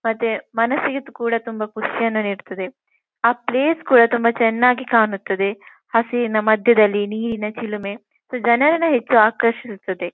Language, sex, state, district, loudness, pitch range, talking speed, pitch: Kannada, female, Karnataka, Dakshina Kannada, -19 LUFS, 215-245 Hz, 110 wpm, 230 Hz